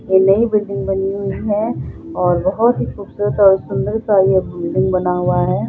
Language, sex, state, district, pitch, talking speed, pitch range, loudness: Hindi, female, Bihar, Saharsa, 195 Hz, 190 wpm, 185-205 Hz, -16 LUFS